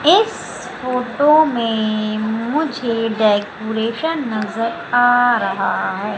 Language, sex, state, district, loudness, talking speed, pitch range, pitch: Hindi, female, Madhya Pradesh, Umaria, -17 LUFS, 85 wpm, 220-265 Hz, 235 Hz